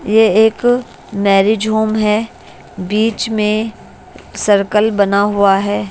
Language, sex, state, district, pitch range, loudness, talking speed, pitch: Hindi, female, Bihar, West Champaran, 205-220 Hz, -14 LUFS, 110 wpm, 210 Hz